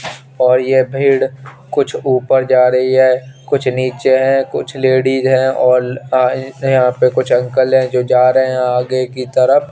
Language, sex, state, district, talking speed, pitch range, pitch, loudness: Hindi, male, Chandigarh, Chandigarh, 165 wpm, 125-135 Hz, 130 Hz, -13 LUFS